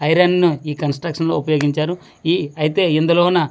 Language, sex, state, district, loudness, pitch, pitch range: Telugu, male, Andhra Pradesh, Manyam, -18 LUFS, 160 Hz, 150-175 Hz